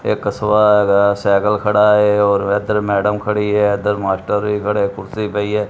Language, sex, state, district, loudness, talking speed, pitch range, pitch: Punjabi, male, Punjab, Kapurthala, -15 LUFS, 190 wpm, 100-105 Hz, 105 Hz